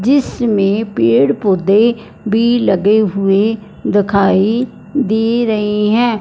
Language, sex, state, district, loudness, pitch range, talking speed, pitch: Hindi, male, Punjab, Fazilka, -14 LUFS, 200-230 Hz, 95 wpm, 215 Hz